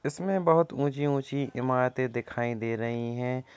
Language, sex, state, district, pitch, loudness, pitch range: Hindi, male, Uttar Pradesh, Varanasi, 130 Hz, -29 LUFS, 120-140 Hz